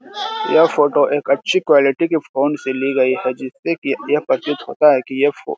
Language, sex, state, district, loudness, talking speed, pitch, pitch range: Hindi, male, Bihar, Jamui, -17 LUFS, 225 wpm, 145 Hz, 135-165 Hz